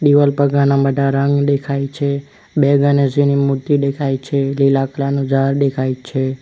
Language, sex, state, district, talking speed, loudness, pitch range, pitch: Gujarati, male, Gujarat, Valsad, 170 wpm, -16 LUFS, 135-140 Hz, 140 Hz